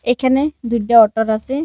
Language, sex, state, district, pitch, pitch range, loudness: Bengali, female, West Bengal, Kolkata, 235 Hz, 225-265 Hz, -15 LUFS